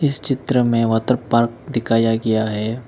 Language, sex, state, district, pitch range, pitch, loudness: Hindi, male, Arunachal Pradesh, Lower Dibang Valley, 115-125 Hz, 115 Hz, -19 LUFS